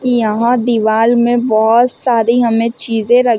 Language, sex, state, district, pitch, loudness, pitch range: Hindi, female, Chhattisgarh, Rajnandgaon, 235 Hz, -12 LUFS, 225-240 Hz